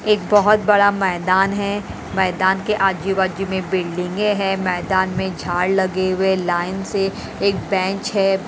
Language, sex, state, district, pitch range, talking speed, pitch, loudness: Hindi, female, Haryana, Rohtak, 185-200 Hz, 150 wpm, 190 Hz, -19 LUFS